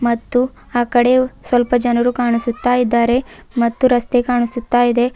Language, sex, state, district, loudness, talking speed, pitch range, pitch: Kannada, female, Karnataka, Bidar, -16 LUFS, 130 wpm, 240-245 Hz, 245 Hz